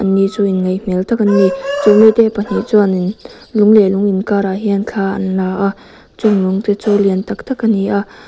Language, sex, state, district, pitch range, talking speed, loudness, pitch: Mizo, female, Mizoram, Aizawl, 195-210 Hz, 205 wpm, -14 LUFS, 200 Hz